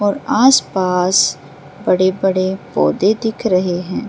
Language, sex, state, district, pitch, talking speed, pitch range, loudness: Hindi, female, Bihar, Samastipur, 185 Hz, 105 wpm, 180-215 Hz, -15 LUFS